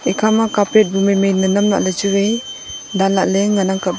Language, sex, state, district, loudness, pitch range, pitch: Wancho, female, Arunachal Pradesh, Longding, -15 LUFS, 195-210 Hz, 200 Hz